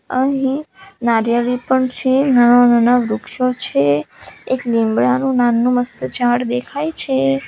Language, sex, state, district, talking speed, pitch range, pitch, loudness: Gujarati, female, Gujarat, Valsad, 120 wpm, 235-265 Hz, 245 Hz, -16 LUFS